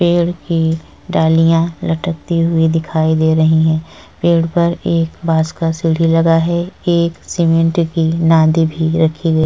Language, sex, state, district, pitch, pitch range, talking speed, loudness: Hindi, female, Uttar Pradesh, Etah, 165 Hz, 160-170 Hz, 150 wpm, -14 LUFS